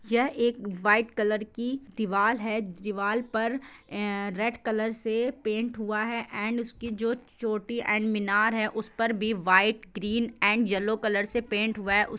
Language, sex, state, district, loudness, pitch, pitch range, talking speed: Hindi, female, Bihar, East Champaran, -28 LUFS, 220 Hz, 210-235 Hz, 180 wpm